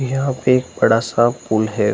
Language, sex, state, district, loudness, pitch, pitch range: Hindi, male, Bihar, Darbhanga, -17 LUFS, 120 Hz, 110-130 Hz